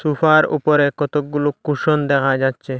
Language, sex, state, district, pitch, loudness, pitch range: Bengali, male, Assam, Hailakandi, 145 Hz, -17 LUFS, 140-150 Hz